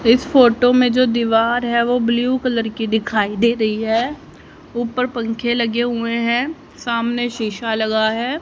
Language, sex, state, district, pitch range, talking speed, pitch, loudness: Hindi, female, Haryana, Rohtak, 225-245 Hz, 165 wpm, 235 Hz, -18 LUFS